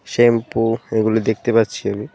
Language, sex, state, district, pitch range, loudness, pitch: Bengali, male, Tripura, West Tripura, 110-115 Hz, -18 LUFS, 115 Hz